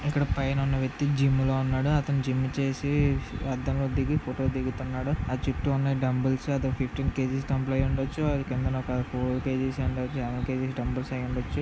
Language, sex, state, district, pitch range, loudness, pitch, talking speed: Telugu, male, Andhra Pradesh, Visakhapatnam, 130-135 Hz, -28 LUFS, 130 Hz, 65 wpm